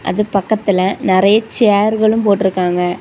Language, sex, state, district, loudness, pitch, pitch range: Tamil, female, Tamil Nadu, Kanyakumari, -14 LUFS, 200 Hz, 185-215 Hz